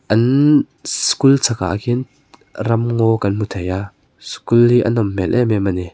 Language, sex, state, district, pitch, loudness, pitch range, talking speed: Mizo, male, Mizoram, Aizawl, 115 Hz, -16 LUFS, 100-130 Hz, 180 wpm